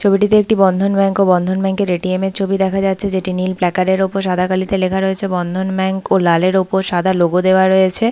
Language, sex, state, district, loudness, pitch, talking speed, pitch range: Bengali, female, West Bengal, Paschim Medinipur, -15 LUFS, 190 Hz, 235 wpm, 185-195 Hz